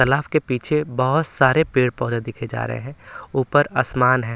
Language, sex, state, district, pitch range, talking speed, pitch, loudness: Hindi, male, Bihar, Patna, 125-145 Hz, 180 wpm, 130 Hz, -20 LUFS